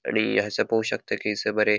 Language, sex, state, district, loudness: Konkani, male, Goa, North and South Goa, -25 LUFS